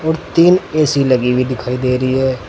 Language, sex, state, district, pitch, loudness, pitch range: Hindi, male, Uttar Pradesh, Saharanpur, 130 Hz, -14 LUFS, 125-155 Hz